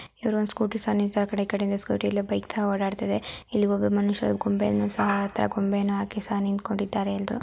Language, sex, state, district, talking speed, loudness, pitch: Kannada, female, Karnataka, Dharwad, 185 wpm, -26 LUFS, 200 Hz